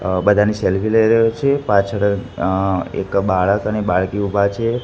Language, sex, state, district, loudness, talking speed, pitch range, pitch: Gujarati, male, Gujarat, Gandhinagar, -17 LUFS, 175 wpm, 95-110 Hz, 100 Hz